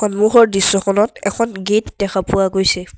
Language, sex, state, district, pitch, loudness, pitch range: Assamese, male, Assam, Sonitpur, 200 Hz, -15 LUFS, 195-215 Hz